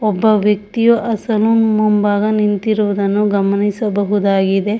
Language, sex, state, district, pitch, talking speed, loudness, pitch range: Kannada, female, Karnataka, Shimoga, 210 Hz, 85 wpm, -15 LUFS, 205-215 Hz